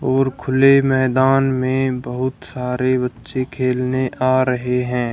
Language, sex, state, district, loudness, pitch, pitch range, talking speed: Hindi, male, Haryana, Jhajjar, -18 LUFS, 130 Hz, 125-130 Hz, 130 wpm